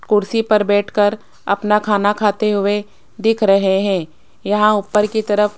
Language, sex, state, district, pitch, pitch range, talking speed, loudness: Hindi, female, Rajasthan, Jaipur, 210 Hz, 205-215 Hz, 150 wpm, -16 LUFS